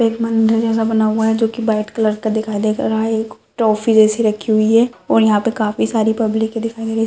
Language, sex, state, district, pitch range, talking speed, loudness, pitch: Hindi, female, Rajasthan, Nagaur, 215-225 Hz, 255 wpm, -16 LUFS, 220 Hz